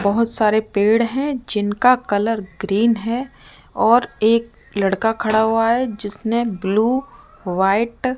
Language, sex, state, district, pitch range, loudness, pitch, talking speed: Hindi, female, Rajasthan, Jaipur, 205-235 Hz, -19 LUFS, 225 Hz, 130 wpm